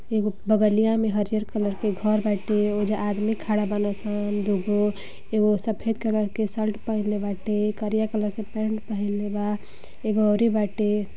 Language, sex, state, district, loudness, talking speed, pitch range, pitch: Bhojpuri, female, Uttar Pradesh, Gorakhpur, -25 LUFS, 160 wpm, 205-215 Hz, 210 Hz